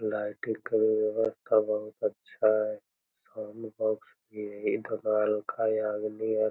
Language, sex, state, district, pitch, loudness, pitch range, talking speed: Magahi, male, Bihar, Lakhisarai, 110 Hz, -30 LUFS, 105-110 Hz, 90 wpm